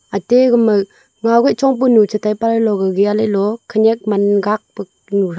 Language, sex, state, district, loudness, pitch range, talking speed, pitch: Wancho, female, Arunachal Pradesh, Longding, -15 LUFS, 205-230 Hz, 135 wpm, 215 Hz